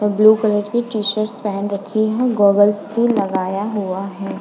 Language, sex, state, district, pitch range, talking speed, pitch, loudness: Hindi, female, Uttar Pradesh, Budaun, 200-215 Hz, 175 wpm, 210 Hz, -17 LUFS